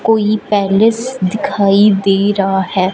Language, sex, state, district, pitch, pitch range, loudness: Hindi, male, Punjab, Fazilka, 205 Hz, 195-215 Hz, -13 LUFS